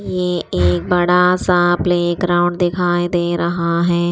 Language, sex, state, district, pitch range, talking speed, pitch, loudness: Hindi, female, Chandigarh, Chandigarh, 175-180 Hz, 130 wpm, 175 Hz, -16 LUFS